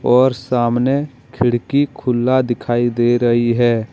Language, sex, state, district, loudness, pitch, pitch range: Hindi, male, Jharkhand, Deoghar, -16 LUFS, 120 Hz, 120-130 Hz